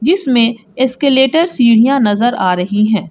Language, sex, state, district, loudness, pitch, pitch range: Hindi, female, Jharkhand, Garhwa, -12 LUFS, 240 Hz, 215-270 Hz